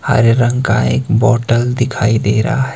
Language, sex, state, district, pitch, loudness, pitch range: Hindi, male, Himachal Pradesh, Shimla, 120 Hz, -13 LUFS, 110-125 Hz